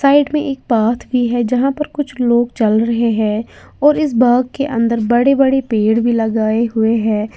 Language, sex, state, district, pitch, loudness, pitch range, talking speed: Hindi, female, Uttar Pradesh, Lalitpur, 240 Hz, -15 LUFS, 225-270 Hz, 205 wpm